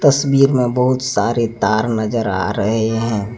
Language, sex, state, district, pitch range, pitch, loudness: Hindi, male, Jharkhand, Deoghar, 110-125 Hz, 115 Hz, -17 LUFS